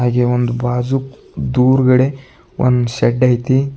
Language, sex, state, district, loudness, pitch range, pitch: Kannada, male, Karnataka, Bidar, -15 LUFS, 125-130 Hz, 125 Hz